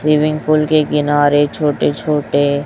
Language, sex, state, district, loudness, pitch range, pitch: Hindi, male, Chhattisgarh, Raipur, -15 LUFS, 145-155 Hz, 150 Hz